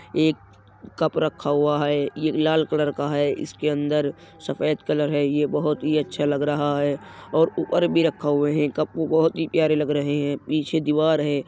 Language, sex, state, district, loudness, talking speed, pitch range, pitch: Hindi, male, Uttar Pradesh, Jyotiba Phule Nagar, -23 LUFS, 200 wpm, 145-155 Hz, 150 Hz